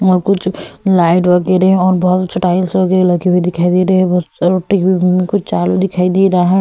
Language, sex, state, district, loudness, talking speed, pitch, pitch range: Hindi, female, Goa, North and South Goa, -13 LUFS, 200 wpm, 185 Hz, 180-185 Hz